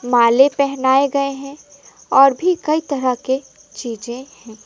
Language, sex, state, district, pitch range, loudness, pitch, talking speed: Hindi, female, West Bengal, Alipurduar, 250-280 Hz, -17 LUFS, 270 Hz, 115 wpm